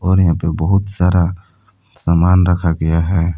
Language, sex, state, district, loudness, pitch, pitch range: Hindi, male, Jharkhand, Palamu, -15 LUFS, 90 Hz, 85-95 Hz